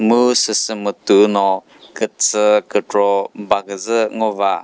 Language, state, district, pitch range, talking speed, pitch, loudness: Chakhesang, Nagaland, Dimapur, 100-110 Hz, 90 wpm, 105 Hz, -16 LUFS